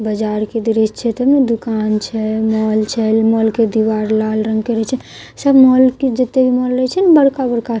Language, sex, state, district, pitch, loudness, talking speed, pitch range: Maithili, female, Bihar, Katihar, 225 Hz, -14 LUFS, 215 wpm, 220-255 Hz